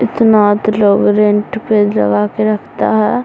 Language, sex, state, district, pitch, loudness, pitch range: Hindi, female, Bihar, Samastipur, 210 Hz, -12 LUFS, 205-215 Hz